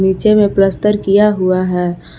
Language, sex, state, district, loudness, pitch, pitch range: Hindi, female, Jharkhand, Palamu, -13 LUFS, 195 Hz, 185-210 Hz